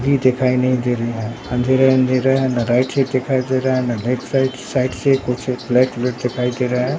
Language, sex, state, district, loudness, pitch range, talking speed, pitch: Hindi, male, Bihar, Katihar, -18 LUFS, 125-130 Hz, 255 wpm, 125 Hz